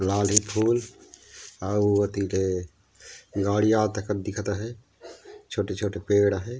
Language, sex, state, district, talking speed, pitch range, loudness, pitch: Chhattisgarhi, male, Chhattisgarh, Raigarh, 110 wpm, 100-110 Hz, -25 LUFS, 105 Hz